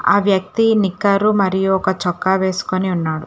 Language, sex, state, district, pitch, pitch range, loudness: Telugu, female, Telangana, Hyderabad, 190 Hz, 185-200 Hz, -17 LUFS